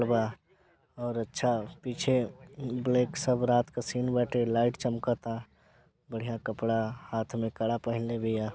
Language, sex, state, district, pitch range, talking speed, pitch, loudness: Bhojpuri, male, Bihar, Gopalganj, 115-125 Hz, 135 wpm, 120 Hz, -31 LUFS